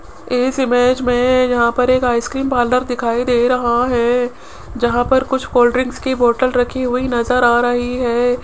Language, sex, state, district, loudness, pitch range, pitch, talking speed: Hindi, female, Rajasthan, Jaipur, -16 LUFS, 240-255 Hz, 245 Hz, 180 wpm